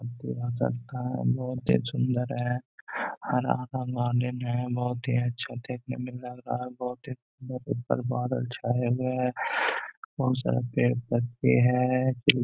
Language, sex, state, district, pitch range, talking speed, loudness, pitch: Hindi, male, Bihar, Gaya, 120-125 Hz, 115 wpm, -29 LUFS, 125 Hz